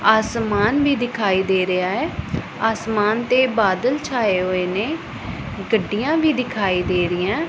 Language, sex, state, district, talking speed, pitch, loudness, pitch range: Punjabi, female, Punjab, Pathankot, 135 wpm, 215 Hz, -20 LUFS, 190-250 Hz